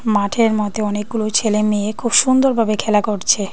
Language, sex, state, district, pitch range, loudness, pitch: Bengali, female, Tripura, Dhalai, 210-230 Hz, -17 LUFS, 215 Hz